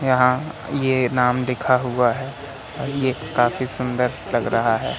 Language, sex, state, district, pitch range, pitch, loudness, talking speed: Hindi, male, Madhya Pradesh, Katni, 125-135 Hz, 130 Hz, -21 LUFS, 145 wpm